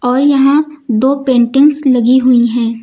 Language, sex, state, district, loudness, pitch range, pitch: Hindi, female, Uttar Pradesh, Lucknow, -11 LUFS, 240-280 Hz, 260 Hz